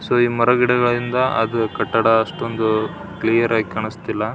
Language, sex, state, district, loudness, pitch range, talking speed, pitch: Kannada, male, Karnataka, Belgaum, -19 LUFS, 110-120 Hz, 140 wpm, 115 Hz